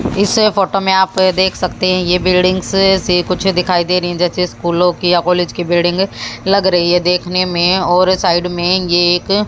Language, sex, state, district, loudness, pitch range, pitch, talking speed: Hindi, female, Haryana, Jhajjar, -13 LUFS, 175-190 Hz, 180 Hz, 200 wpm